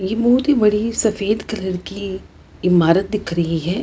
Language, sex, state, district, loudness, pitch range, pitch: Hindi, female, Bihar, Lakhisarai, -18 LUFS, 180-220 Hz, 200 Hz